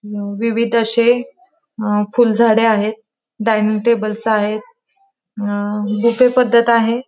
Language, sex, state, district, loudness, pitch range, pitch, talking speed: Marathi, female, Maharashtra, Pune, -16 LUFS, 215-240 Hz, 230 Hz, 110 wpm